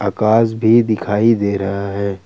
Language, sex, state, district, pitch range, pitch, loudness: Hindi, male, Jharkhand, Ranchi, 100-110 Hz, 105 Hz, -15 LUFS